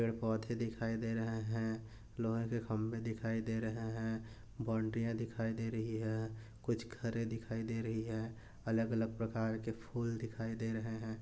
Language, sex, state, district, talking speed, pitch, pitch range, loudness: Hindi, male, Maharashtra, Dhule, 175 wpm, 115 Hz, 110-115 Hz, -40 LUFS